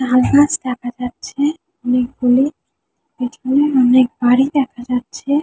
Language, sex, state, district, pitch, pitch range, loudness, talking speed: Bengali, female, West Bengal, Jhargram, 255 Hz, 250-285 Hz, -16 LUFS, 110 wpm